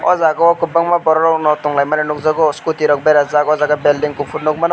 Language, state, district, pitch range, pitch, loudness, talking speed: Kokborok, Tripura, West Tripura, 150-160 Hz, 155 Hz, -14 LUFS, 230 wpm